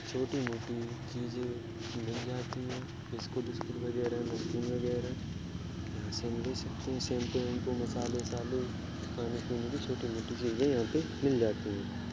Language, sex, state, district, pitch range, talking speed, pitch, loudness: Hindi, male, Uttar Pradesh, Jalaun, 115-125 Hz, 130 wpm, 120 Hz, -36 LUFS